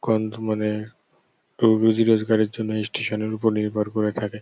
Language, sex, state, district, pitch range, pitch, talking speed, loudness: Bengali, male, West Bengal, North 24 Parganas, 105-110 Hz, 110 Hz, 165 wpm, -22 LUFS